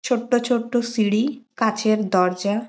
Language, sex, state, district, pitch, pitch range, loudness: Bengali, female, West Bengal, Malda, 230 Hz, 210-245 Hz, -21 LUFS